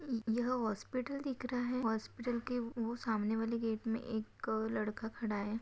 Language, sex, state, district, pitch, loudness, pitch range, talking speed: Hindi, female, Maharashtra, Nagpur, 230 Hz, -38 LUFS, 220-245 Hz, 180 wpm